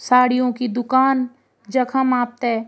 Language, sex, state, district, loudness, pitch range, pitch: Garhwali, female, Uttarakhand, Tehri Garhwal, -19 LUFS, 245-260 Hz, 250 Hz